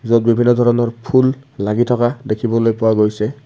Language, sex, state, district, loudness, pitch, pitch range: Assamese, male, Assam, Kamrup Metropolitan, -16 LUFS, 120 Hz, 115-125 Hz